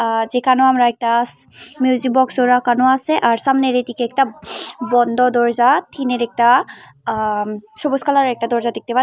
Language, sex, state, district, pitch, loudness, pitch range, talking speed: Bengali, female, Tripura, Unakoti, 250 Hz, -16 LUFS, 235-260 Hz, 160 wpm